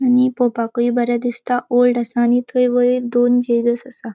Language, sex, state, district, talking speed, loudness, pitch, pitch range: Konkani, female, Goa, North and South Goa, 175 wpm, -17 LUFS, 245 Hz, 240-250 Hz